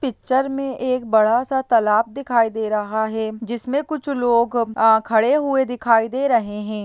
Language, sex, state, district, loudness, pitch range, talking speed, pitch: Hindi, female, Bihar, Lakhisarai, -19 LUFS, 220-265 Hz, 175 wpm, 235 Hz